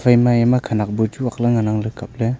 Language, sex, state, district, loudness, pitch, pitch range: Wancho, male, Arunachal Pradesh, Longding, -18 LUFS, 120 Hz, 110-120 Hz